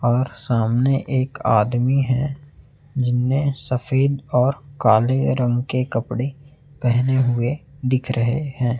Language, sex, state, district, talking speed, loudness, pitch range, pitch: Hindi, male, Chhattisgarh, Raipur, 115 wpm, -20 LUFS, 125-135 Hz, 130 Hz